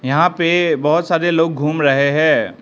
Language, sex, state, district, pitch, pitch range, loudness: Hindi, male, Arunachal Pradesh, Lower Dibang Valley, 160 Hz, 145-170 Hz, -15 LUFS